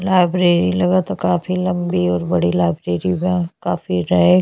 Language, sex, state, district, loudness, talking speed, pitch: Bhojpuri, female, Uttar Pradesh, Ghazipur, -17 LUFS, 165 wpm, 175 Hz